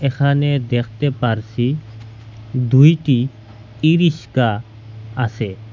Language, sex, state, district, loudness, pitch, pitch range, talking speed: Bengali, male, Assam, Hailakandi, -17 LUFS, 120 Hz, 110-140 Hz, 75 wpm